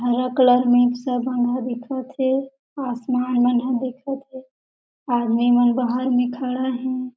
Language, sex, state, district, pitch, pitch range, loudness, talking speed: Chhattisgarhi, female, Chhattisgarh, Jashpur, 250 Hz, 245-260 Hz, -21 LUFS, 150 wpm